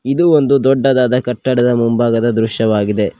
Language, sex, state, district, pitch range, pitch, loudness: Kannada, male, Karnataka, Koppal, 115-135 Hz, 120 Hz, -14 LUFS